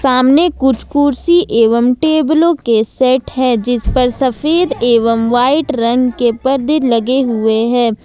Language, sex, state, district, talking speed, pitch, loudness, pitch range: Hindi, female, Jharkhand, Ranchi, 140 wpm, 255 Hz, -13 LUFS, 235-285 Hz